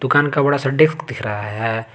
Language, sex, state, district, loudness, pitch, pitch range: Hindi, male, Jharkhand, Garhwa, -18 LUFS, 135 Hz, 110-145 Hz